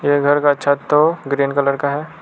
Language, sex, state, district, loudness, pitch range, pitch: Hindi, male, Arunachal Pradesh, Lower Dibang Valley, -16 LUFS, 140-150 Hz, 145 Hz